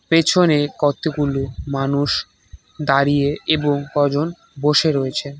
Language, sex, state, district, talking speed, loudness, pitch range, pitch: Bengali, male, West Bengal, Cooch Behar, 90 wpm, -19 LUFS, 140-155 Hz, 145 Hz